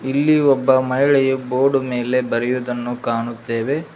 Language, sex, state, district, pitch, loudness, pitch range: Kannada, male, Karnataka, Koppal, 130 Hz, -18 LUFS, 120-135 Hz